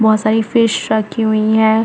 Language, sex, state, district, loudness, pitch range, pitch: Hindi, female, Chhattisgarh, Bilaspur, -14 LUFS, 215-220 Hz, 220 Hz